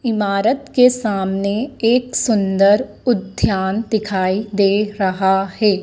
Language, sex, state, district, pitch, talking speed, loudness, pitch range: Hindi, female, Madhya Pradesh, Dhar, 205 Hz, 105 wpm, -17 LUFS, 195-230 Hz